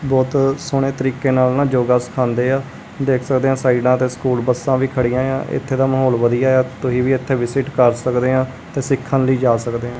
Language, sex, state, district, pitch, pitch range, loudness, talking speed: Punjabi, male, Punjab, Kapurthala, 130 Hz, 125-135 Hz, -17 LUFS, 220 wpm